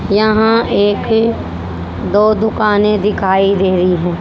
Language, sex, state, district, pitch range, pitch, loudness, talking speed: Hindi, female, Haryana, Jhajjar, 180-215 Hz, 205 Hz, -13 LUFS, 115 wpm